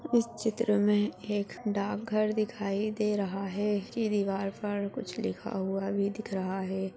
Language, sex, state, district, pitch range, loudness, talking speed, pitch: Hindi, female, Chhattisgarh, Bastar, 195-215 Hz, -31 LUFS, 180 wpm, 205 Hz